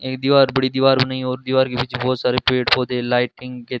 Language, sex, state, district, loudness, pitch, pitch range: Hindi, male, Rajasthan, Bikaner, -18 LUFS, 130 Hz, 125-130 Hz